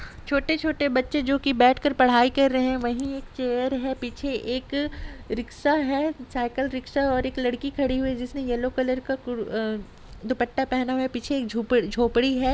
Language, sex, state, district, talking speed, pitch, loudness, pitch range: Hindi, female, Jharkhand, Sahebganj, 170 wpm, 260 Hz, -25 LUFS, 245-275 Hz